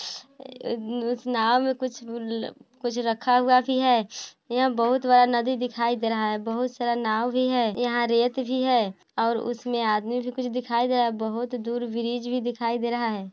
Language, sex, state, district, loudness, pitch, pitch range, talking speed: Hindi, female, Bihar, Vaishali, -25 LUFS, 240 Hz, 230-250 Hz, 200 wpm